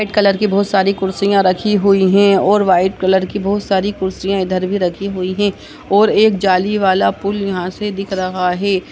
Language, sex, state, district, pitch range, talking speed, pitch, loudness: Hindi, female, Uttar Pradesh, Budaun, 185-200 Hz, 210 wpm, 195 Hz, -15 LUFS